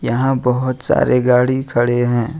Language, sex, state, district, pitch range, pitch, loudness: Hindi, male, Jharkhand, Ranchi, 120-130 Hz, 125 Hz, -16 LUFS